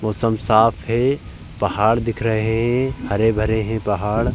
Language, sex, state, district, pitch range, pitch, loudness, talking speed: Hindi, male, Uttar Pradesh, Jalaun, 110-115 Hz, 110 Hz, -19 LUFS, 140 wpm